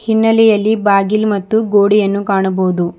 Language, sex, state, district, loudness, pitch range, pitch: Kannada, female, Karnataka, Bidar, -13 LUFS, 195-220 Hz, 205 Hz